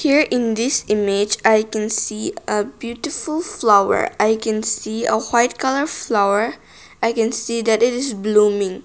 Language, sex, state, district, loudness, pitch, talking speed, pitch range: English, female, Nagaland, Kohima, -19 LUFS, 225 Hz, 160 wpm, 215-245 Hz